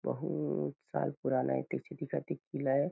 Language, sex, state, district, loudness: Chhattisgarhi, male, Chhattisgarh, Kabirdham, -35 LUFS